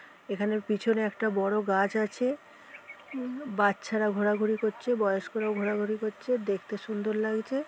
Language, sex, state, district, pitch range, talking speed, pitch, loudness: Bengali, female, West Bengal, North 24 Parganas, 205-220 Hz, 125 wpm, 215 Hz, -29 LUFS